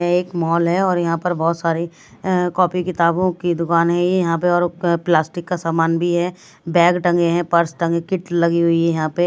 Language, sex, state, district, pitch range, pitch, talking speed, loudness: Hindi, female, Delhi, New Delhi, 170-180 Hz, 175 Hz, 205 wpm, -18 LUFS